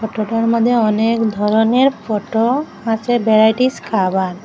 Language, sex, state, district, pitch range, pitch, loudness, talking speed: Bengali, female, Assam, Hailakandi, 215-235 Hz, 225 Hz, -16 LUFS, 110 wpm